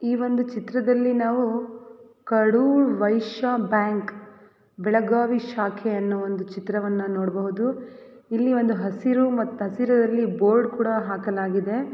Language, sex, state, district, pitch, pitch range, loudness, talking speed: Kannada, female, Karnataka, Belgaum, 225 Hz, 205-245 Hz, -23 LUFS, 105 wpm